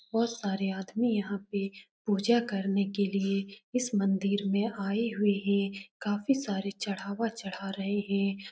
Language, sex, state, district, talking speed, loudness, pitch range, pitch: Hindi, female, Bihar, Saran, 140 wpm, -31 LUFS, 195-210 Hz, 200 Hz